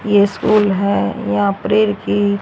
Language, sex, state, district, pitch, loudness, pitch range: Hindi, female, Haryana, Rohtak, 200 Hz, -16 LUFS, 195-210 Hz